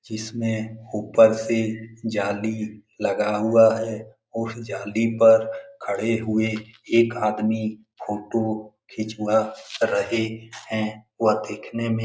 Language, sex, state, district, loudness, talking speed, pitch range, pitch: Hindi, male, Bihar, Jamui, -23 LUFS, 110 wpm, 110-115 Hz, 110 Hz